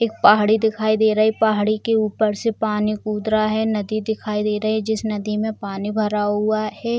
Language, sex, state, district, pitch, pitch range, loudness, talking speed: Hindi, female, Bihar, Purnia, 215 Hz, 210-220 Hz, -20 LUFS, 225 wpm